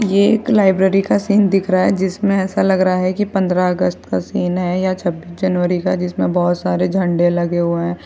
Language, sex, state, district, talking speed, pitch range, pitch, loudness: Hindi, female, Uttar Pradesh, Jyotiba Phule Nagar, 225 wpm, 175-195 Hz, 185 Hz, -16 LUFS